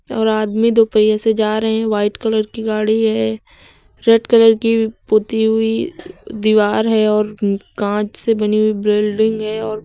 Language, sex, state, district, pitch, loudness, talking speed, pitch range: Hindi, female, Uttar Pradesh, Lucknow, 215 Hz, -16 LUFS, 170 wpm, 210-225 Hz